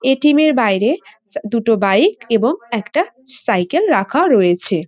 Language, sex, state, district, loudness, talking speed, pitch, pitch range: Bengali, female, West Bengal, North 24 Parganas, -15 LUFS, 135 wpm, 235 Hz, 200-290 Hz